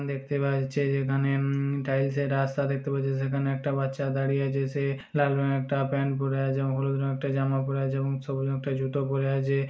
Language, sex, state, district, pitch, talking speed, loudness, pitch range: Bajjika, male, Bihar, Vaishali, 135 Hz, 150 wpm, -28 LUFS, 135-140 Hz